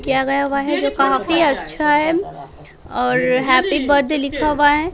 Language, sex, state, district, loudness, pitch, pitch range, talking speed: Hindi, male, Bihar, West Champaran, -17 LUFS, 285 Hz, 270-300 Hz, 170 wpm